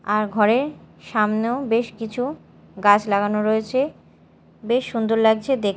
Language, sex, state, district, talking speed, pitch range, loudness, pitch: Bengali, female, Odisha, Malkangiri, 125 wpm, 210-245 Hz, -21 LUFS, 225 Hz